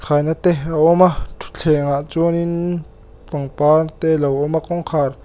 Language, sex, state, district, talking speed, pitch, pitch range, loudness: Mizo, male, Mizoram, Aizawl, 160 wpm, 155 Hz, 145-170 Hz, -17 LUFS